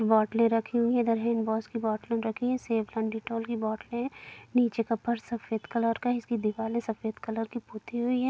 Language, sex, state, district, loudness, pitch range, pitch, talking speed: Hindi, female, Bihar, Gopalganj, -30 LUFS, 220-235 Hz, 230 Hz, 215 wpm